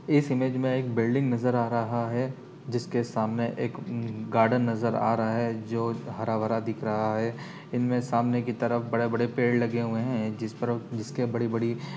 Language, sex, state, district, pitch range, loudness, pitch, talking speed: Hindi, male, Uttar Pradesh, Etah, 115-125 Hz, -28 LUFS, 120 Hz, 200 wpm